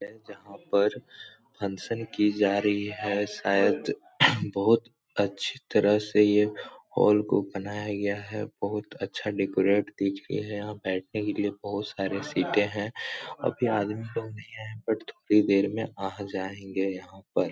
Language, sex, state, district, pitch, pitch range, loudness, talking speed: Hindi, male, Bihar, Supaul, 105 Hz, 100-105 Hz, -28 LUFS, 165 wpm